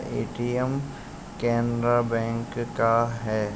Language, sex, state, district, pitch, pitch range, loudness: Hindi, male, Uttar Pradesh, Jalaun, 120 Hz, 115-120 Hz, -26 LUFS